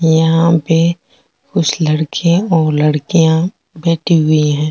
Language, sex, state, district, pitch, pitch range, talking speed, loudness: Rajasthani, female, Rajasthan, Nagaur, 160 Hz, 155-170 Hz, 115 wpm, -13 LUFS